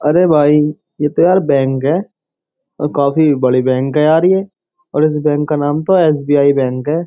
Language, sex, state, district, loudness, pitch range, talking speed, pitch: Hindi, male, Uttar Pradesh, Jyotiba Phule Nagar, -13 LUFS, 145-165 Hz, 195 wpm, 150 Hz